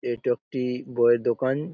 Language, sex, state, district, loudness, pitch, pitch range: Bengali, male, West Bengal, Jalpaiguri, -25 LUFS, 125 Hz, 120-130 Hz